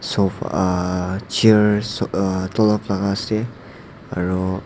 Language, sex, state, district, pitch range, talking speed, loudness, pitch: Nagamese, male, Nagaland, Dimapur, 95-110 Hz, 105 wpm, -20 LUFS, 100 Hz